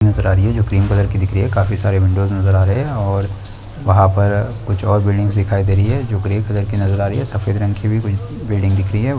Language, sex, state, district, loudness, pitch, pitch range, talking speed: Hindi, male, Chhattisgarh, Rajnandgaon, -16 LUFS, 100 Hz, 100-105 Hz, 270 wpm